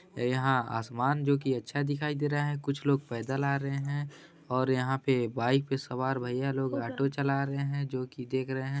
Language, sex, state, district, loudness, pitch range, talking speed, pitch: Hindi, male, Chhattisgarh, Bilaspur, -31 LUFS, 130-140 Hz, 210 wpm, 135 Hz